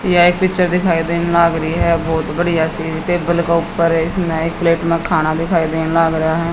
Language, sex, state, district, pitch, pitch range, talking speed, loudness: Hindi, female, Haryana, Jhajjar, 165 Hz, 160-170 Hz, 240 wpm, -16 LUFS